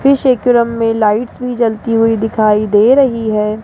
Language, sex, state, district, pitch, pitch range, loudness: Hindi, female, Rajasthan, Jaipur, 225 Hz, 215-245 Hz, -12 LUFS